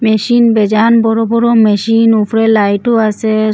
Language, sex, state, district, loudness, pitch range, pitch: Bengali, female, Assam, Hailakandi, -10 LUFS, 215-230 Hz, 225 Hz